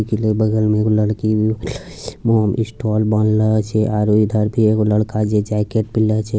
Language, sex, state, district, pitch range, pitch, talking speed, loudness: Angika, male, Bihar, Bhagalpur, 105-110 Hz, 110 Hz, 170 wpm, -17 LUFS